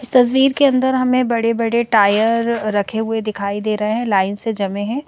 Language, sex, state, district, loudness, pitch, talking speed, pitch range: Hindi, female, Madhya Pradesh, Bhopal, -17 LUFS, 225 Hz, 215 wpm, 210-250 Hz